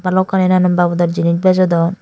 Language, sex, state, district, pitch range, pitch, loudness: Chakma, female, Tripura, Dhalai, 170-185 Hz, 180 Hz, -14 LUFS